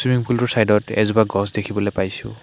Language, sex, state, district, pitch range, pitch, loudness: Assamese, male, Assam, Hailakandi, 105-120 Hz, 110 Hz, -19 LUFS